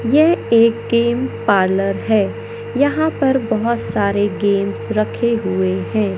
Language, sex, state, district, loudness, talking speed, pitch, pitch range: Hindi, male, Madhya Pradesh, Katni, -17 LUFS, 125 wpm, 215 Hz, 190-235 Hz